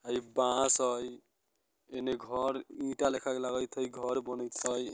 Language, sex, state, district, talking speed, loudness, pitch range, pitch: Bajjika, male, Bihar, Vaishali, 145 wpm, -33 LUFS, 125-130 Hz, 125 Hz